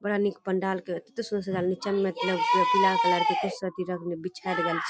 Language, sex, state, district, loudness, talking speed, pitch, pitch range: Hindi, female, Bihar, Darbhanga, -27 LUFS, 145 wpm, 190 Hz, 180-205 Hz